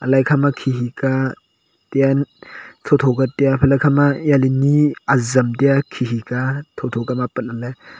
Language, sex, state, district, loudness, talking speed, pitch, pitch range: Wancho, male, Arunachal Pradesh, Longding, -18 LUFS, 220 wpm, 135 Hz, 125-140 Hz